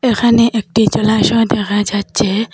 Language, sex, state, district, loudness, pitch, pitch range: Bengali, female, Assam, Hailakandi, -14 LUFS, 220 Hz, 205-230 Hz